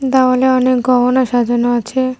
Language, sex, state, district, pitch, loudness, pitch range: Bengali, female, West Bengal, Cooch Behar, 255 Hz, -13 LUFS, 245-260 Hz